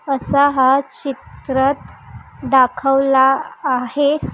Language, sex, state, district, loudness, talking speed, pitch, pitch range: Marathi, female, Maharashtra, Chandrapur, -16 LUFS, 70 wpm, 270 Hz, 265-280 Hz